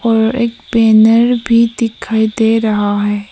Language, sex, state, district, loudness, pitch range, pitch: Hindi, female, Arunachal Pradesh, Papum Pare, -12 LUFS, 220-230 Hz, 225 Hz